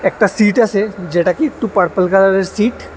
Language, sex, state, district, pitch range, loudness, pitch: Bengali, male, Tripura, West Tripura, 185-220 Hz, -14 LUFS, 200 Hz